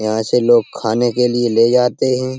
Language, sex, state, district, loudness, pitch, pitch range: Hindi, male, Uttar Pradesh, Etah, -15 LUFS, 120 Hz, 115-125 Hz